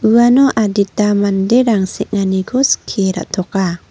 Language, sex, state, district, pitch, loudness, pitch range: Garo, female, Meghalaya, North Garo Hills, 205 Hz, -14 LUFS, 190-230 Hz